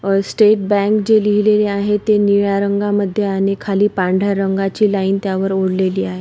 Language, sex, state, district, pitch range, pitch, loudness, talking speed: Marathi, female, Maharashtra, Pune, 195-210 Hz, 200 Hz, -16 LUFS, 165 wpm